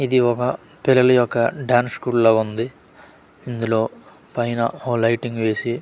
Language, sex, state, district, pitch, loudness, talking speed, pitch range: Telugu, male, Andhra Pradesh, Manyam, 120 Hz, -20 LUFS, 135 wpm, 115-125 Hz